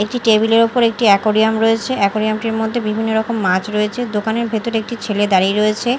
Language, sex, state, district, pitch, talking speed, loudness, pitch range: Bengali, female, Odisha, Malkangiri, 220 Hz, 190 wpm, -16 LUFS, 210-230 Hz